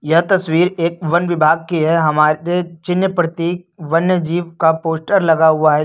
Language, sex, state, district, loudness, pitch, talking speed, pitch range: Hindi, male, Uttar Pradesh, Lucknow, -16 LUFS, 165 Hz, 175 wpm, 160-175 Hz